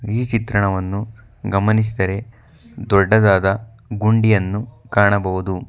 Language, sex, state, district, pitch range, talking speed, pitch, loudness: Kannada, male, Karnataka, Bangalore, 95-110 Hz, 65 wpm, 105 Hz, -18 LUFS